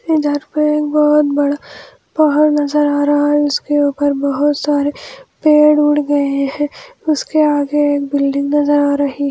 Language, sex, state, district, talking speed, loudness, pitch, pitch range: Hindi, female, Andhra Pradesh, Anantapur, 160 wpm, -14 LUFS, 290 Hz, 285-300 Hz